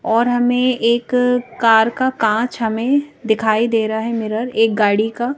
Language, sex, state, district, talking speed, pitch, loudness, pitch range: Hindi, female, Madhya Pradesh, Bhopal, 180 wpm, 230 Hz, -17 LUFS, 220-245 Hz